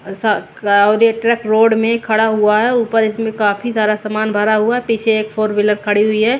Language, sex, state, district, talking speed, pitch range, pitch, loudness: Hindi, female, Haryana, Jhajjar, 245 wpm, 210-225 Hz, 215 Hz, -15 LUFS